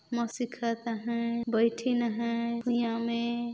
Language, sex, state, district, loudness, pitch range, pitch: Chhattisgarhi, female, Chhattisgarh, Balrampur, -30 LUFS, 230-235 Hz, 235 Hz